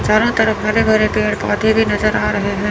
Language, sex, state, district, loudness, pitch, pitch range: Hindi, male, Chandigarh, Chandigarh, -15 LUFS, 215 Hz, 210-220 Hz